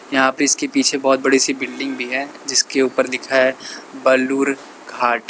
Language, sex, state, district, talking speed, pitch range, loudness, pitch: Hindi, male, Uttar Pradesh, Lalitpur, 190 wpm, 130-140 Hz, -17 LUFS, 135 Hz